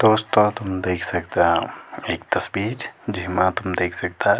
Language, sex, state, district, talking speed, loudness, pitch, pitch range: Garhwali, male, Uttarakhand, Tehri Garhwal, 150 wpm, -22 LUFS, 95 Hz, 90-105 Hz